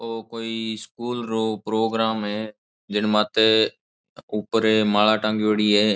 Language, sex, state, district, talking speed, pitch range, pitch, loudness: Marwari, male, Rajasthan, Nagaur, 110 wpm, 105-110 Hz, 110 Hz, -22 LUFS